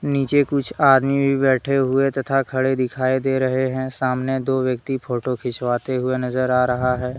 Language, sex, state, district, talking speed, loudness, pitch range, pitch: Hindi, male, Jharkhand, Deoghar, 185 wpm, -20 LUFS, 125-135 Hz, 130 Hz